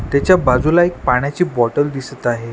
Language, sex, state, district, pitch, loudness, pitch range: Marathi, male, Maharashtra, Washim, 135 Hz, -16 LUFS, 125-160 Hz